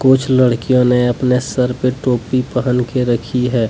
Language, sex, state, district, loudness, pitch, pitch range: Hindi, male, Jharkhand, Deoghar, -15 LUFS, 125 Hz, 125-130 Hz